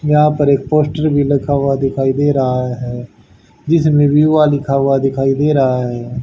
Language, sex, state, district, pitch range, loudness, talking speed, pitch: Hindi, male, Haryana, Charkhi Dadri, 125-150 Hz, -14 LUFS, 185 wpm, 140 Hz